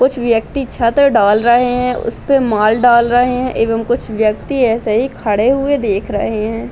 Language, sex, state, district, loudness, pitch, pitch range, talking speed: Hindi, female, Bihar, Muzaffarpur, -14 LUFS, 240 Hz, 220-255 Hz, 195 wpm